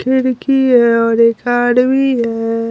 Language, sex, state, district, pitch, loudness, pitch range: Hindi, male, Bihar, Patna, 245 Hz, -13 LUFS, 230-260 Hz